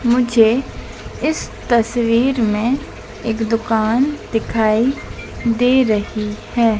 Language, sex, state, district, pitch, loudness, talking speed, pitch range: Hindi, female, Madhya Pradesh, Dhar, 230 Hz, -17 LUFS, 90 wpm, 225-250 Hz